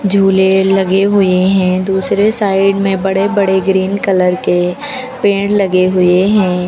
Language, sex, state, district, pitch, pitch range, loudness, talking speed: Hindi, female, Uttar Pradesh, Lucknow, 195 Hz, 185-200 Hz, -12 LUFS, 145 wpm